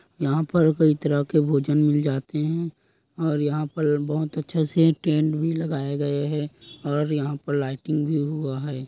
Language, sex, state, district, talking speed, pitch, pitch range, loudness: Hindi, male, Chhattisgarh, Korba, 185 wpm, 150 Hz, 145-155 Hz, -24 LUFS